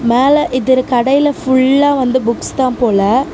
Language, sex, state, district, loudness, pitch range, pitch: Tamil, female, Tamil Nadu, Namakkal, -13 LUFS, 245-275 Hz, 260 Hz